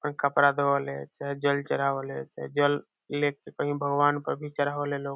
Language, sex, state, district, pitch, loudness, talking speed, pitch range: Bhojpuri, male, Bihar, Saran, 140 Hz, -28 LUFS, 185 wpm, 140-145 Hz